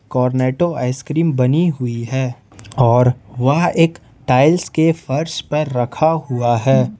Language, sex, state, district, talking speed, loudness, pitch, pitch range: Hindi, male, Jharkhand, Ranchi, 130 wpm, -17 LUFS, 130 Hz, 125-160 Hz